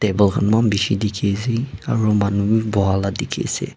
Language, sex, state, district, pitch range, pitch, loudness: Nagamese, male, Nagaland, Dimapur, 100-110 Hz, 105 Hz, -19 LUFS